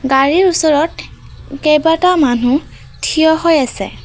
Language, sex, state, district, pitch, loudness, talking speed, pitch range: Assamese, female, Assam, Kamrup Metropolitan, 305 Hz, -13 LUFS, 105 wpm, 270-325 Hz